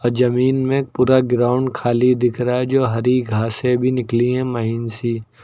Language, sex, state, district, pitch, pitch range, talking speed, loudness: Hindi, male, Uttar Pradesh, Lucknow, 125 Hz, 120-125 Hz, 175 wpm, -18 LUFS